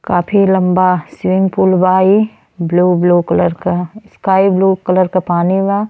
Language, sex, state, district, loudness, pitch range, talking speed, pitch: Bhojpuri, female, Uttar Pradesh, Deoria, -13 LUFS, 180-195 Hz, 165 wpm, 185 Hz